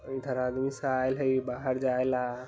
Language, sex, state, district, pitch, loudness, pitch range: Bajjika, male, Bihar, Vaishali, 130 Hz, -30 LUFS, 125-135 Hz